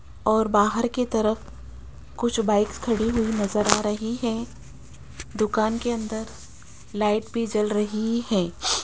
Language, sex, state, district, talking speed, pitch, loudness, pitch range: Hindi, female, Rajasthan, Jaipur, 135 wpm, 215 Hz, -24 LUFS, 205-225 Hz